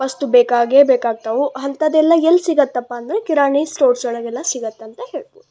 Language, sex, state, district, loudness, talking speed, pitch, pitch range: Kannada, female, Karnataka, Belgaum, -16 LUFS, 140 wpm, 275 Hz, 240-310 Hz